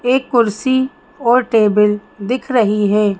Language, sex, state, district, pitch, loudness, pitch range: Hindi, male, Madhya Pradesh, Bhopal, 230 Hz, -15 LUFS, 210-255 Hz